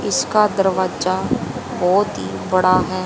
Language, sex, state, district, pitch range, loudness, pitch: Hindi, female, Haryana, Charkhi Dadri, 185-200 Hz, -18 LUFS, 185 Hz